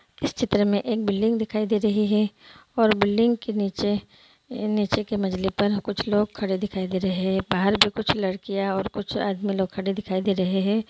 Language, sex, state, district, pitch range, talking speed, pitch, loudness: Hindi, female, Bihar, Muzaffarpur, 195-215 Hz, 205 wpm, 205 Hz, -24 LUFS